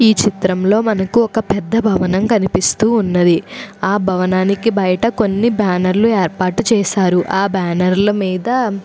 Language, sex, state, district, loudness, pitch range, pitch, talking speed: Telugu, female, Andhra Pradesh, Anantapur, -15 LUFS, 185-220 Hz, 200 Hz, 130 wpm